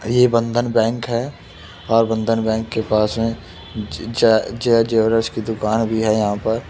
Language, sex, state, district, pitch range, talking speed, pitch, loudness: Hindi, male, Uttar Pradesh, Muzaffarnagar, 110-115 Hz, 170 wpm, 115 Hz, -18 LUFS